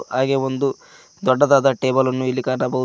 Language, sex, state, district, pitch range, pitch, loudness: Kannada, male, Karnataka, Koppal, 130-135 Hz, 130 Hz, -19 LUFS